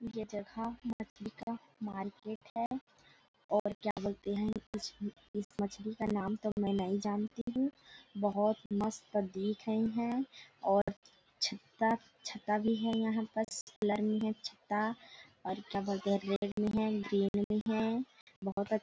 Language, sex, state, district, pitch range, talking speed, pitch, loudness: Hindi, female, Chhattisgarh, Bilaspur, 205-225 Hz, 140 wpm, 215 Hz, -36 LUFS